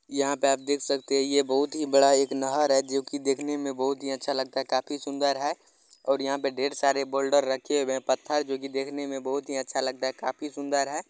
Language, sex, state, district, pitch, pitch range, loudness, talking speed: Hindi, male, Bihar, Araria, 140 Hz, 135-140 Hz, -27 LUFS, 250 wpm